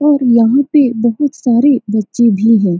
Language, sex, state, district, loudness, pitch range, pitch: Hindi, female, Bihar, Saran, -12 LUFS, 225-280 Hz, 235 Hz